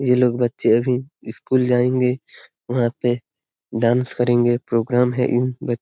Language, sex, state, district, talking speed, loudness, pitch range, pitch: Hindi, male, Bihar, Lakhisarai, 165 wpm, -20 LUFS, 120-125 Hz, 125 Hz